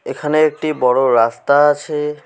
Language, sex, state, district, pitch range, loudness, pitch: Bengali, male, West Bengal, Alipurduar, 135-150 Hz, -15 LUFS, 150 Hz